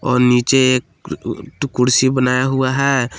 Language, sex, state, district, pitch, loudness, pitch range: Hindi, male, Jharkhand, Palamu, 130 Hz, -16 LUFS, 125-135 Hz